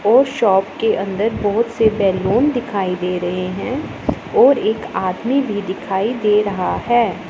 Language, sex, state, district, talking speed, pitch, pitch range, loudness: Hindi, female, Punjab, Pathankot, 155 wpm, 210 Hz, 190-235 Hz, -18 LUFS